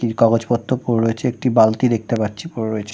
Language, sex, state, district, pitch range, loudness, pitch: Bengali, male, West Bengal, Kolkata, 110-120 Hz, -18 LUFS, 115 Hz